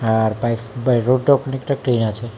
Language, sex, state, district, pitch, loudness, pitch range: Bengali, male, Tripura, West Tripura, 120 Hz, -19 LUFS, 115-130 Hz